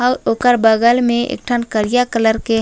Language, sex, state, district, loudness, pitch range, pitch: Chhattisgarhi, female, Chhattisgarh, Raigarh, -15 LUFS, 225-245 Hz, 235 Hz